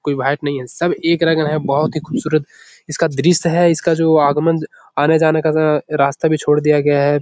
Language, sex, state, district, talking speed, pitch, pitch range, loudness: Hindi, male, Bihar, Jahanabad, 215 wpm, 155 Hz, 145-160 Hz, -16 LUFS